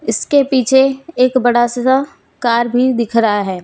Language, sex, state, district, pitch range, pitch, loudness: Hindi, female, Jharkhand, Deoghar, 235-265 Hz, 250 Hz, -14 LUFS